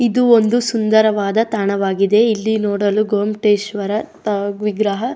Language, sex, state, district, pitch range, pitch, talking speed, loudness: Kannada, female, Karnataka, Dakshina Kannada, 205-225 Hz, 210 Hz, 95 wpm, -16 LUFS